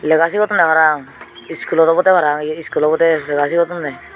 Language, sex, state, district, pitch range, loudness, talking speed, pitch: Chakma, female, Tripura, Unakoti, 150-165 Hz, -15 LUFS, 145 wpm, 160 Hz